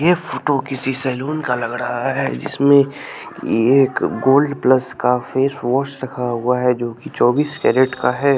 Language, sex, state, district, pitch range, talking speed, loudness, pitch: Hindi, male, Bihar, West Champaran, 125-140 Hz, 180 wpm, -18 LUFS, 135 Hz